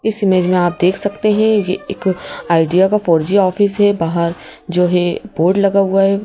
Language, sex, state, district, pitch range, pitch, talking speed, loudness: Hindi, female, Madhya Pradesh, Bhopal, 175-205 Hz, 190 Hz, 210 wpm, -15 LUFS